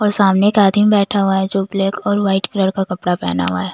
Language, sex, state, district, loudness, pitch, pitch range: Hindi, female, Bihar, Patna, -16 LUFS, 195 Hz, 190-205 Hz